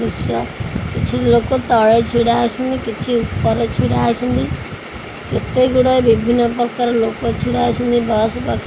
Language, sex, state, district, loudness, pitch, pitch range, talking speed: Odia, female, Odisha, Khordha, -16 LUFS, 235 Hz, 230-250 Hz, 105 wpm